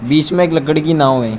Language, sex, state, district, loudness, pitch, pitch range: Hindi, male, Arunachal Pradesh, Lower Dibang Valley, -13 LUFS, 155 Hz, 135-160 Hz